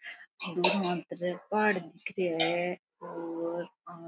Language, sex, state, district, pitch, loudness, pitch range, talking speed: Rajasthani, female, Rajasthan, Nagaur, 175 Hz, -31 LUFS, 170-185 Hz, 90 wpm